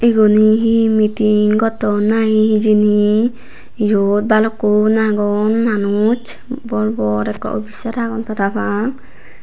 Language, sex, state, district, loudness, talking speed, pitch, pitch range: Chakma, female, Tripura, Unakoti, -15 LUFS, 100 wpm, 215 Hz, 210-225 Hz